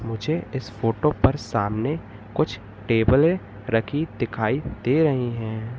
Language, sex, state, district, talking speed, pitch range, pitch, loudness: Hindi, male, Madhya Pradesh, Katni, 125 wpm, 110-145 Hz, 120 Hz, -24 LUFS